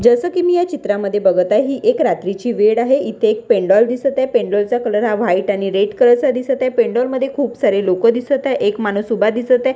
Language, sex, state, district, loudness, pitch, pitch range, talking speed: Marathi, female, Maharashtra, Washim, -16 LUFS, 240 Hz, 205-275 Hz, 245 wpm